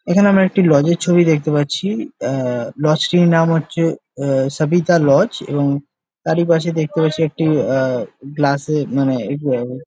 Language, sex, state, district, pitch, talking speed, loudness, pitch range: Bengali, male, West Bengal, Jalpaiguri, 155 Hz, 160 wpm, -16 LUFS, 140-170 Hz